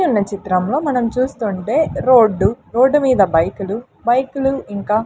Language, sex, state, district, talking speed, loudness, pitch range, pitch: Telugu, female, Andhra Pradesh, Sri Satya Sai, 120 wpm, -16 LUFS, 200-260 Hz, 230 Hz